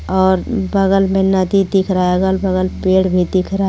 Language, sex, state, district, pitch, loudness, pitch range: Hindi, female, Jharkhand, Garhwa, 190 Hz, -15 LUFS, 185-195 Hz